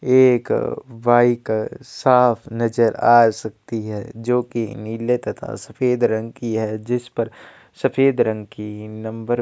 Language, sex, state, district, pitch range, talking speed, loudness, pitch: Hindi, male, Chhattisgarh, Kabirdham, 110-125 Hz, 140 wpm, -20 LUFS, 115 Hz